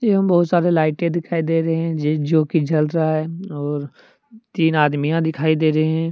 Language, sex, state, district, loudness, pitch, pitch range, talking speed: Hindi, male, Jharkhand, Deoghar, -19 LUFS, 160 Hz, 155-170 Hz, 195 wpm